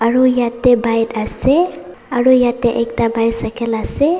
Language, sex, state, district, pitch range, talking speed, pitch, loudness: Nagamese, female, Nagaland, Dimapur, 230-255 Hz, 130 wpm, 240 Hz, -15 LUFS